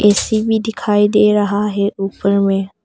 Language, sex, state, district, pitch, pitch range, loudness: Hindi, female, Arunachal Pradesh, Longding, 205 Hz, 200-210 Hz, -15 LUFS